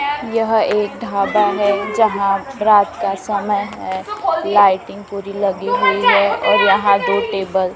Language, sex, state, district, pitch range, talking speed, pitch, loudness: Hindi, female, Maharashtra, Gondia, 200-220 Hz, 145 wpm, 205 Hz, -16 LUFS